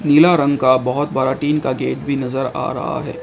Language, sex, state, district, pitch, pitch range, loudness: Hindi, male, Assam, Kamrup Metropolitan, 140 Hz, 130-150 Hz, -17 LUFS